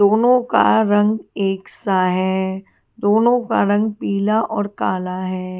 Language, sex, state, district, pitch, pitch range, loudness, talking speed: Hindi, female, Haryana, Charkhi Dadri, 205 Hz, 190-220 Hz, -18 LUFS, 140 wpm